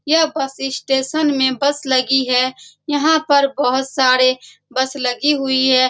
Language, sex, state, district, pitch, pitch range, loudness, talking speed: Hindi, female, Bihar, Saran, 270 Hz, 260-285 Hz, -16 LUFS, 160 wpm